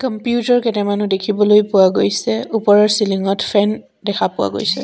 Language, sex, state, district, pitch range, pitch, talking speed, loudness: Assamese, female, Assam, Sonitpur, 205-225 Hz, 210 Hz, 135 wpm, -16 LUFS